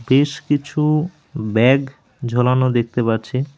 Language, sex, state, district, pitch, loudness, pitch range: Bengali, male, West Bengal, Alipurduar, 130 Hz, -18 LUFS, 120-145 Hz